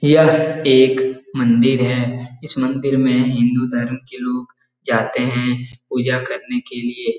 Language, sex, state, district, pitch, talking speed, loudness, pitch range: Hindi, male, Bihar, Jahanabad, 125 Hz, 140 wpm, -18 LUFS, 125-135 Hz